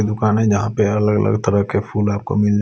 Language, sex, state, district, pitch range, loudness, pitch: Hindi, male, Delhi, New Delhi, 100-105 Hz, -18 LUFS, 105 Hz